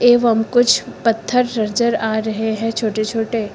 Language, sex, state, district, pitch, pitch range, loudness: Hindi, female, Uttar Pradesh, Lucknow, 225 Hz, 220-235 Hz, -17 LUFS